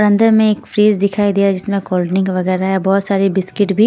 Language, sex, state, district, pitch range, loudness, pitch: Hindi, female, Haryana, Rohtak, 190-210 Hz, -15 LUFS, 200 Hz